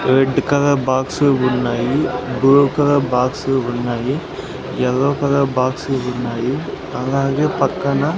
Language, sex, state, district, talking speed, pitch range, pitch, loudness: Telugu, male, Andhra Pradesh, Sri Satya Sai, 110 wpm, 125-140 Hz, 130 Hz, -17 LUFS